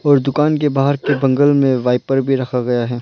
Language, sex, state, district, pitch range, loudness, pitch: Hindi, male, Arunachal Pradesh, Lower Dibang Valley, 125-140 Hz, -16 LUFS, 135 Hz